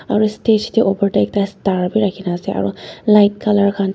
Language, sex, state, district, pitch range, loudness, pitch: Nagamese, female, Nagaland, Dimapur, 195-210 Hz, -16 LUFS, 200 Hz